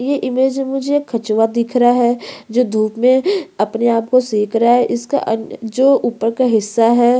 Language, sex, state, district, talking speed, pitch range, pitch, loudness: Hindi, female, Chhattisgarh, Korba, 200 wpm, 225-260 Hz, 240 Hz, -15 LUFS